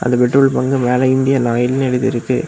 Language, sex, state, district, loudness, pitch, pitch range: Tamil, male, Tamil Nadu, Kanyakumari, -15 LUFS, 130 Hz, 125-135 Hz